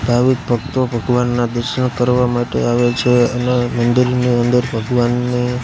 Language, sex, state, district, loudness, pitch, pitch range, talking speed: Gujarati, male, Gujarat, Gandhinagar, -16 LUFS, 125 Hz, 120-125 Hz, 130 wpm